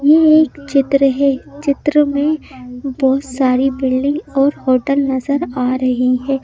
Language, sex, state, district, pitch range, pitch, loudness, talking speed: Hindi, female, Madhya Pradesh, Bhopal, 260-285 Hz, 275 Hz, -15 LUFS, 140 wpm